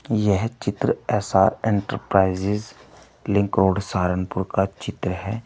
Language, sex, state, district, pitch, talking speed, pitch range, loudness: Hindi, male, Uttar Pradesh, Saharanpur, 100 Hz, 110 wpm, 95-105 Hz, -22 LUFS